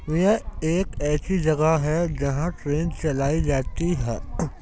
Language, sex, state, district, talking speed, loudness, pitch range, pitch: Hindi, male, Uttar Pradesh, Jyotiba Phule Nagar, 130 wpm, -24 LUFS, 145-170 Hz, 155 Hz